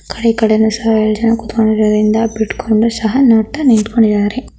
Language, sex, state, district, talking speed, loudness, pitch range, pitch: Kannada, female, Karnataka, Gulbarga, 145 wpm, -13 LUFS, 215-230 Hz, 220 Hz